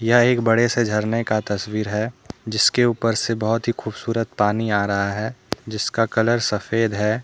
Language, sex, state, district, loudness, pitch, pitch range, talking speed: Hindi, male, Jharkhand, Deoghar, -21 LUFS, 115 Hz, 105-115 Hz, 190 wpm